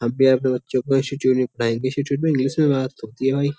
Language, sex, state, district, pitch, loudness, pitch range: Hindi, male, Uttar Pradesh, Jyotiba Phule Nagar, 130 Hz, -21 LUFS, 130-140 Hz